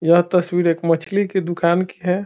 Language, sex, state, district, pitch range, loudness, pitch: Hindi, male, Bihar, Saran, 170-185 Hz, -19 LUFS, 175 Hz